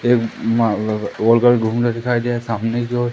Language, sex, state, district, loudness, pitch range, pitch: Hindi, male, Madhya Pradesh, Umaria, -18 LUFS, 115-120 Hz, 115 Hz